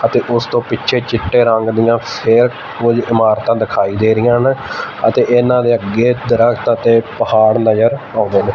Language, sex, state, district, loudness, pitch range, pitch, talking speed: Punjabi, male, Punjab, Fazilka, -13 LUFS, 110-120 Hz, 115 Hz, 170 wpm